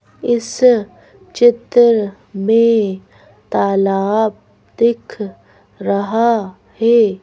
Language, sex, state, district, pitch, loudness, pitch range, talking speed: Hindi, female, Madhya Pradesh, Bhopal, 220 Hz, -15 LUFS, 195-235 Hz, 60 wpm